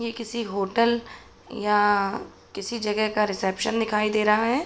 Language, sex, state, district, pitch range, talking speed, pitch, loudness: Hindi, female, Uttar Pradesh, Budaun, 205-230 Hz, 155 wpm, 215 Hz, -24 LUFS